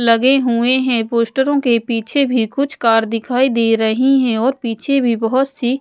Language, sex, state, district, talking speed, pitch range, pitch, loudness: Hindi, female, Odisha, Malkangiri, 185 wpm, 230-265 Hz, 245 Hz, -15 LUFS